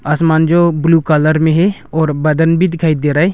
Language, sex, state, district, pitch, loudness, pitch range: Hindi, male, Arunachal Pradesh, Longding, 160 Hz, -12 LUFS, 155-165 Hz